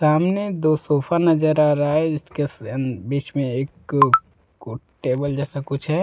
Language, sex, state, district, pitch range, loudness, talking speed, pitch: Hindi, male, Jharkhand, Deoghar, 140-155 Hz, -21 LUFS, 160 wpm, 145 Hz